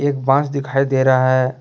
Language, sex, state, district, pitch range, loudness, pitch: Hindi, male, Jharkhand, Deoghar, 130-140 Hz, -16 LUFS, 135 Hz